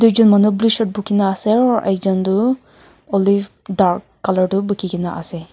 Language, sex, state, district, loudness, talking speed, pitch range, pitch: Nagamese, female, Nagaland, Kohima, -17 LUFS, 185 wpm, 190-215 Hz, 200 Hz